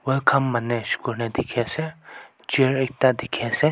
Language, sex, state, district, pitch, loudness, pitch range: Nagamese, male, Nagaland, Kohima, 130 Hz, -23 LUFS, 120-135 Hz